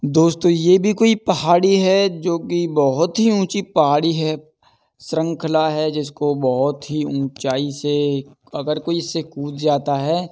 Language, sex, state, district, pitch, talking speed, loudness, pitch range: Hindi, male, Uttar Pradesh, Budaun, 155 Hz, 155 wpm, -18 LUFS, 145-175 Hz